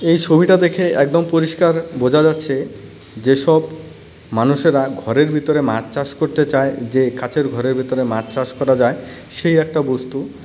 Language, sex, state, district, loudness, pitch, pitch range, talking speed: Bengali, male, West Bengal, Cooch Behar, -16 LUFS, 140 Hz, 130-160 Hz, 150 wpm